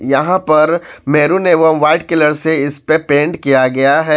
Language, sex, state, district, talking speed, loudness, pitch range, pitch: Hindi, male, Jharkhand, Ranchi, 185 wpm, -12 LUFS, 145-160 Hz, 155 Hz